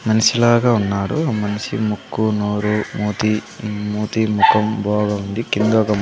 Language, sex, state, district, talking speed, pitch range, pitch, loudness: Telugu, male, Andhra Pradesh, Sri Satya Sai, 130 wpm, 105-110 Hz, 105 Hz, -18 LUFS